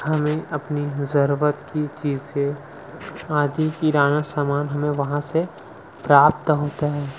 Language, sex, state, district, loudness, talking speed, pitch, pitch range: Hindi, male, Chhattisgarh, Sukma, -21 LUFS, 115 wpm, 145 Hz, 145-150 Hz